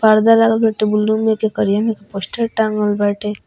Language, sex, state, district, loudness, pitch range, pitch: Bhojpuri, female, Bihar, Muzaffarpur, -16 LUFS, 210-220 Hz, 215 Hz